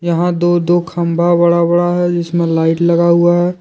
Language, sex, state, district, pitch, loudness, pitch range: Hindi, male, Jharkhand, Deoghar, 175 Hz, -13 LUFS, 170-175 Hz